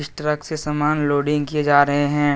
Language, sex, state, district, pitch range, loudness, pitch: Hindi, male, Jharkhand, Deoghar, 145-150 Hz, -19 LUFS, 150 Hz